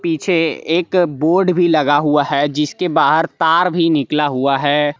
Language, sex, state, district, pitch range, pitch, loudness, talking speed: Hindi, male, Jharkhand, Palamu, 145-170 Hz, 160 Hz, -15 LUFS, 170 wpm